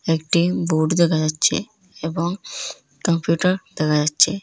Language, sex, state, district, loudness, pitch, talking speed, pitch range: Bengali, female, Assam, Hailakandi, -20 LUFS, 170 Hz, 110 wpm, 160-185 Hz